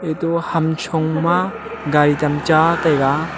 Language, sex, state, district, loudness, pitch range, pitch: Wancho, male, Arunachal Pradesh, Longding, -17 LUFS, 150-165 Hz, 160 Hz